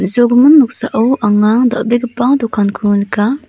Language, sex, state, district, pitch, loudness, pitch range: Garo, female, Meghalaya, North Garo Hills, 240 Hz, -11 LUFS, 210-255 Hz